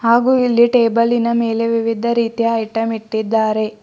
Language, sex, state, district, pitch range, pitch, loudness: Kannada, female, Karnataka, Bidar, 225-235 Hz, 230 Hz, -16 LUFS